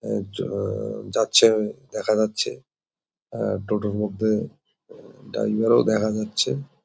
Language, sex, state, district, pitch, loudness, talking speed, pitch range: Bengali, male, West Bengal, Jalpaiguri, 110 Hz, -23 LUFS, 95 wpm, 105-110 Hz